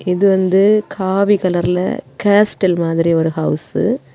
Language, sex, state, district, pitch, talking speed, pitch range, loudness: Tamil, female, Tamil Nadu, Kanyakumari, 190 Hz, 130 wpm, 175-200 Hz, -15 LUFS